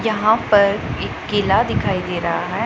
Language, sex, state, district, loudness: Hindi, female, Punjab, Pathankot, -18 LUFS